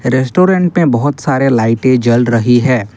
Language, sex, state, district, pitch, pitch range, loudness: Hindi, male, Assam, Kamrup Metropolitan, 130 Hz, 120-145 Hz, -11 LUFS